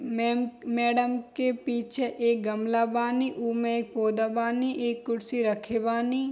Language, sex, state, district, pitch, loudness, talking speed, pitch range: Bhojpuri, female, Bihar, East Champaran, 235 Hz, -28 LUFS, 140 wpm, 230-245 Hz